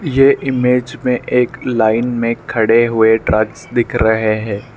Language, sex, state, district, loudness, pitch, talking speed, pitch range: Hindi, male, Arunachal Pradesh, Lower Dibang Valley, -15 LUFS, 120 Hz, 150 wpm, 110-125 Hz